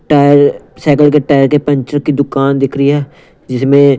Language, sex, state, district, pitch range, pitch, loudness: Hindi, male, Punjab, Pathankot, 140-145 Hz, 140 Hz, -11 LUFS